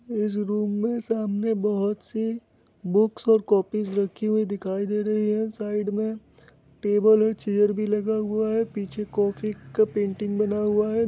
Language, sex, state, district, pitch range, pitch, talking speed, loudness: Hindi, male, Bihar, Muzaffarpur, 205-220 Hz, 210 Hz, 180 wpm, -25 LUFS